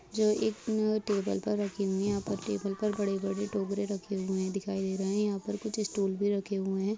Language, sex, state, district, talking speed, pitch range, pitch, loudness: Hindi, female, Bihar, Purnia, 240 wpm, 195-210 Hz, 200 Hz, -32 LUFS